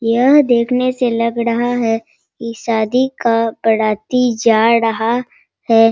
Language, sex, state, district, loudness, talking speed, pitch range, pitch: Hindi, female, Bihar, Sitamarhi, -15 LUFS, 130 wpm, 225-245 Hz, 230 Hz